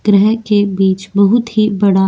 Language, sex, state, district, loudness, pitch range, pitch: Hindi, female, Goa, North and South Goa, -13 LUFS, 195-215 Hz, 205 Hz